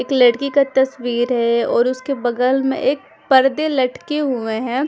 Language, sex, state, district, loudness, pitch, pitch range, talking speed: Hindi, female, Punjab, Fazilka, -17 LUFS, 260 Hz, 245-275 Hz, 170 wpm